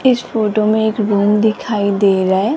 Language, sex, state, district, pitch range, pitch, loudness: Hindi, female, Rajasthan, Jaipur, 200-220 Hz, 215 Hz, -15 LUFS